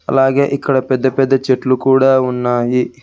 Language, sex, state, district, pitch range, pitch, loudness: Telugu, male, Telangana, Hyderabad, 125-135 Hz, 130 Hz, -14 LUFS